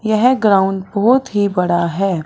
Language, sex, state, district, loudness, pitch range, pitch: Hindi, male, Punjab, Fazilka, -15 LUFS, 185-215 Hz, 200 Hz